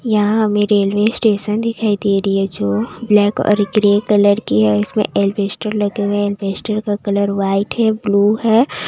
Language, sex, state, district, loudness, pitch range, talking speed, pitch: Hindi, female, Maharashtra, Mumbai Suburban, -16 LUFS, 200-215 Hz, 195 wpm, 205 Hz